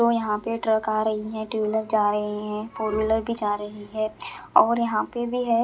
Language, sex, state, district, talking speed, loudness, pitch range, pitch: Hindi, male, Punjab, Fazilka, 245 wpm, -25 LUFS, 210-230 Hz, 220 Hz